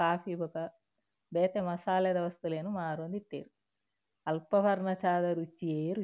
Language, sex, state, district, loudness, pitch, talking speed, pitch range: Tulu, female, Karnataka, Dakshina Kannada, -33 LUFS, 175 Hz, 120 wpm, 160-185 Hz